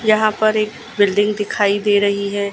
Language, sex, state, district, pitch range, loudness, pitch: Hindi, female, Gujarat, Gandhinagar, 205-215 Hz, -17 LUFS, 205 Hz